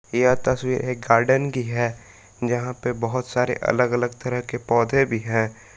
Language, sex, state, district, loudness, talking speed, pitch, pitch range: Hindi, male, Jharkhand, Palamu, -22 LUFS, 175 wpm, 120 Hz, 115-125 Hz